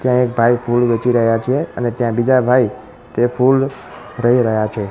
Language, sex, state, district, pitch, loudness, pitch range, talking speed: Gujarati, male, Gujarat, Gandhinagar, 120 Hz, -16 LUFS, 115-125 Hz, 195 wpm